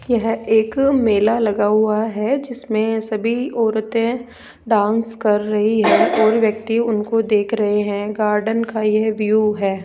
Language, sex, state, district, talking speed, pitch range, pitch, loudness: Hindi, female, Rajasthan, Jaipur, 145 wpm, 210-230 Hz, 220 Hz, -18 LUFS